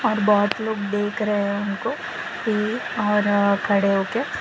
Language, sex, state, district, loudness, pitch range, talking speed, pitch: Hindi, female, Gujarat, Valsad, -22 LUFS, 205-215 Hz, 135 wpm, 210 Hz